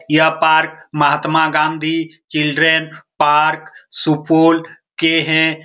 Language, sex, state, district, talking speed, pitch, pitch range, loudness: Hindi, male, Bihar, Supaul, 95 wpm, 160 Hz, 155-160 Hz, -15 LUFS